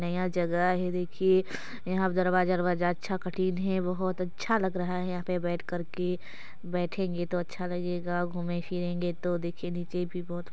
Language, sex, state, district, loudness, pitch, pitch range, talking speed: Hindi, female, Chhattisgarh, Sarguja, -30 LUFS, 180 Hz, 175-185 Hz, 165 wpm